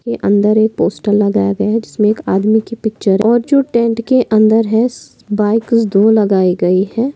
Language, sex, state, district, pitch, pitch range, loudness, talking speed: Hindi, female, Maharashtra, Pune, 215 Hz, 205-230 Hz, -13 LUFS, 200 wpm